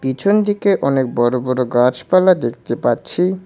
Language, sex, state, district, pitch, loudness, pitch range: Bengali, male, West Bengal, Cooch Behar, 140 Hz, -16 LUFS, 125-185 Hz